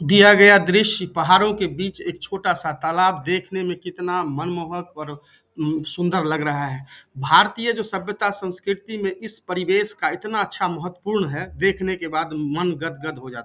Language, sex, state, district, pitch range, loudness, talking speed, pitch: Hindi, male, Bihar, Samastipur, 160-195 Hz, -20 LUFS, 170 wpm, 180 Hz